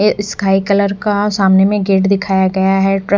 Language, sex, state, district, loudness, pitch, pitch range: Hindi, female, Odisha, Khordha, -13 LUFS, 195 Hz, 190-200 Hz